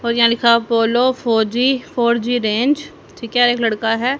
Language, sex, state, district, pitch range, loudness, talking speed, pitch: Hindi, female, Haryana, Charkhi Dadri, 230-250 Hz, -16 LUFS, 200 wpm, 235 Hz